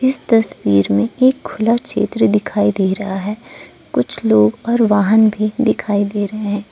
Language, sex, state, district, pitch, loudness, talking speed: Hindi, female, Arunachal Pradesh, Lower Dibang Valley, 205 Hz, -16 LUFS, 170 wpm